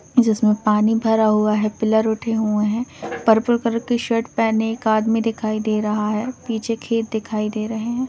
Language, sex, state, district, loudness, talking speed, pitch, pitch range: Hindi, female, Bihar, Lakhisarai, -20 LUFS, 200 wpm, 220 Hz, 215-230 Hz